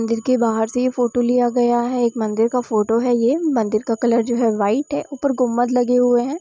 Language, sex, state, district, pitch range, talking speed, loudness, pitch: Hindi, female, Bihar, Sitamarhi, 230-250 Hz, 255 wpm, -18 LUFS, 240 Hz